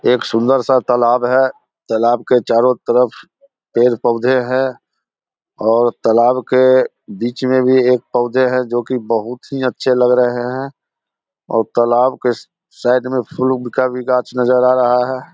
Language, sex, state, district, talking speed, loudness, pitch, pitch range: Hindi, male, Bihar, Samastipur, 165 wpm, -15 LUFS, 125 Hz, 120-130 Hz